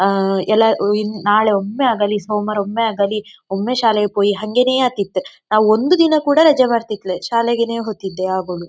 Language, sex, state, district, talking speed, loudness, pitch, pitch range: Kannada, female, Karnataka, Dakshina Kannada, 160 wpm, -16 LUFS, 215 Hz, 200-230 Hz